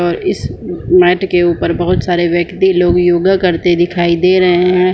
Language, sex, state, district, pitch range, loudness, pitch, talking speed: Hindi, female, Bihar, Supaul, 175-180 Hz, -12 LUFS, 175 Hz, 180 wpm